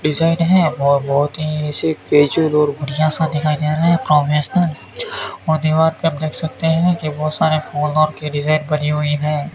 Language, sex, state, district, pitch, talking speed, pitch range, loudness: Hindi, male, Rajasthan, Bikaner, 155 Hz, 200 wpm, 150-160 Hz, -17 LUFS